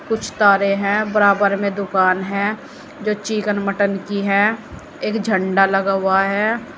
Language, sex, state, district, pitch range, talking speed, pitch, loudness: Hindi, female, Uttar Pradesh, Saharanpur, 195-215 Hz, 150 wpm, 200 Hz, -18 LUFS